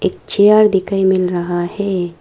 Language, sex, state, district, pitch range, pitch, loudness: Hindi, female, Arunachal Pradesh, Lower Dibang Valley, 175-200 Hz, 190 Hz, -14 LUFS